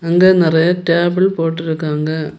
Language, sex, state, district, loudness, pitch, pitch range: Tamil, female, Tamil Nadu, Kanyakumari, -14 LUFS, 165 Hz, 160-175 Hz